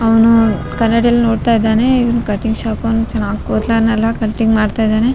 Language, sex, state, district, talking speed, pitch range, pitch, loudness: Kannada, female, Karnataka, Raichur, 150 wpm, 220-230 Hz, 225 Hz, -14 LUFS